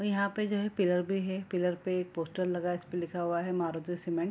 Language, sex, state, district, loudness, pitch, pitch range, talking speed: Hindi, female, Bihar, Araria, -33 LUFS, 180 Hz, 175-190 Hz, 295 wpm